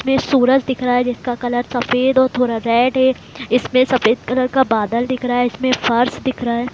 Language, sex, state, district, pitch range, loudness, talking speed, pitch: Hindi, female, Bihar, Gopalganj, 245-260 Hz, -17 LUFS, 220 wpm, 250 Hz